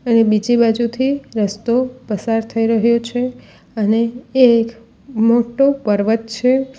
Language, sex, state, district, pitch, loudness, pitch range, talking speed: Gujarati, female, Gujarat, Valsad, 230 Hz, -16 LUFS, 225-250 Hz, 115 wpm